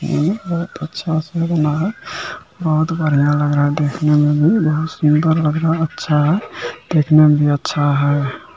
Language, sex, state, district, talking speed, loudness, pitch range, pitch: Hindi, male, Bihar, Bhagalpur, 175 wpm, -16 LUFS, 150-165 Hz, 155 Hz